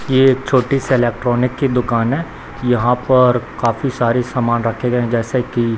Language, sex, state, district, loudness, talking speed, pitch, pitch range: Hindi, male, Bihar, Samastipur, -16 LUFS, 185 wpm, 125 Hz, 120-130 Hz